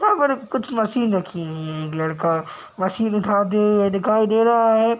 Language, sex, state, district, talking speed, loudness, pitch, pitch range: Hindi, male, Bihar, Gopalganj, 215 wpm, -20 LUFS, 210 Hz, 180-230 Hz